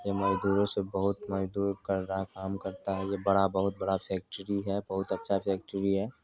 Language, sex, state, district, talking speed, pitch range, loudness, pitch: Maithili, male, Bihar, Supaul, 190 wpm, 95-100 Hz, -31 LUFS, 100 Hz